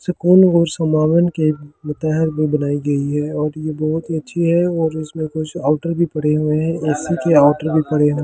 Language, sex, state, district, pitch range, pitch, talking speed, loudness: Hindi, male, Delhi, New Delhi, 150-165 Hz, 155 Hz, 225 wpm, -17 LUFS